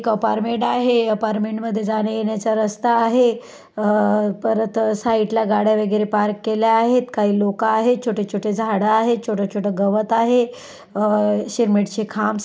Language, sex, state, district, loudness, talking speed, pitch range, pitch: Marathi, female, Maharashtra, Pune, -19 LUFS, 135 wpm, 210-225 Hz, 220 Hz